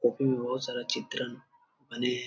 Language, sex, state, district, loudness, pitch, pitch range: Hindi, male, Bihar, Jamui, -32 LUFS, 125 Hz, 125-135 Hz